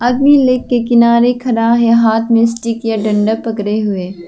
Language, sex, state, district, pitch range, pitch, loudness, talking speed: Hindi, female, Arunachal Pradesh, Lower Dibang Valley, 220-240 Hz, 230 Hz, -12 LUFS, 180 wpm